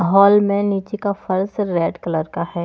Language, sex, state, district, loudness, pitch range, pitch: Hindi, female, Haryana, Jhajjar, -18 LUFS, 170-205 Hz, 195 Hz